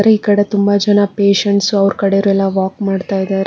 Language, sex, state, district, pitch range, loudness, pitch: Kannada, female, Karnataka, Bangalore, 195-205 Hz, -14 LUFS, 200 Hz